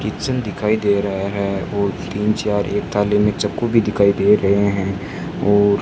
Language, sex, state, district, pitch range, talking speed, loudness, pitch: Hindi, male, Rajasthan, Bikaner, 100-105 Hz, 185 wpm, -18 LUFS, 100 Hz